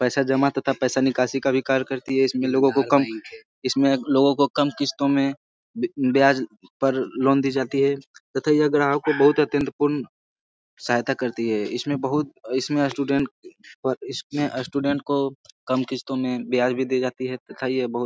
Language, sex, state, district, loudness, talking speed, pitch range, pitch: Hindi, male, Bihar, Jamui, -23 LUFS, 185 wpm, 130-140 Hz, 135 Hz